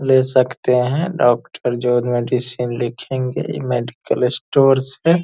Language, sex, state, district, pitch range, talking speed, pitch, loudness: Hindi, male, Bihar, Purnia, 125-135 Hz, 125 wpm, 125 Hz, -18 LUFS